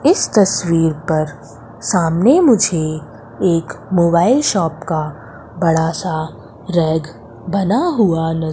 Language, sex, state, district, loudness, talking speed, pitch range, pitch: Hindi, female, Madhya Pradesh, Umaria, -16 LUFS, 100 wpm, 155-185 Hz, 165 Hz